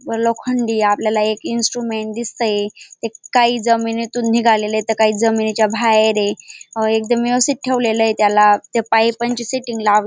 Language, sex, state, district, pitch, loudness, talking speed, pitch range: Marathi, female, Maharashtra, Dhule, 225 Hz, -16 LUFS, 135 wpm, 215-235 Hz